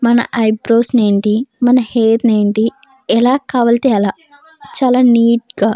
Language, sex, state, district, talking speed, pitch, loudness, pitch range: Telugu, female, Andhra Pradesh, Krishna, 165 wpm, 235 Hz, -13 LUFS, 225-255 Hz